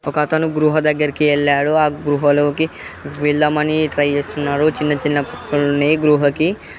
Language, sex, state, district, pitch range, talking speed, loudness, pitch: Telugu, male, Andhra Pradesh, Guntur, 145-155 Hz, 125 wpm, -16 LUFS, 150 Hz